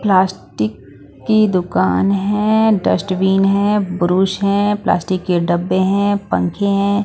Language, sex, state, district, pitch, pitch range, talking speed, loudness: Hindi, female, Punjab, Pathankot, 190 Hz, 175-200 Hz, 120 wpm, -16 LUFS